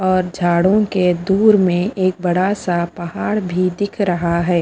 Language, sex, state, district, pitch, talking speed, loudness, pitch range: Hindi, female, Punjab, Fazilka, 185 Hz, 170 wpm, -17 LUFS, 175-195 Hz